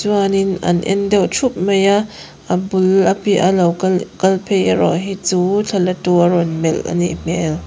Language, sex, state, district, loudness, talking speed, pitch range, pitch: Mizo, female, Mizoram, Aizawl, -16 LUFS, 195 wpm, 175-195 Hz, 190 Hz